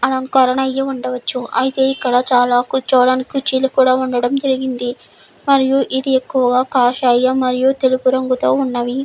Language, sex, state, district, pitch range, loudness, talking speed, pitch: Telugu, female, Andhra Pradesh, Guntur, 250-265 Hz, -16 LUFS, 125 wpm, 260 Hz